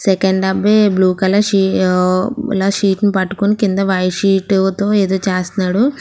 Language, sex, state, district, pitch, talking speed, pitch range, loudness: Telugu, female, Telangana, Hyderabad, 195 Hz, 160 wpm, 190-205 Hz, -14 LUFS